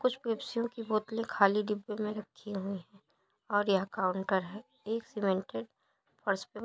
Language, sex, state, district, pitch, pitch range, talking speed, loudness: Hindi, male, Uttar Pradesh, Jalaun, 210 Hz, 195-225 Hz, 145 wpm, -33 LUFS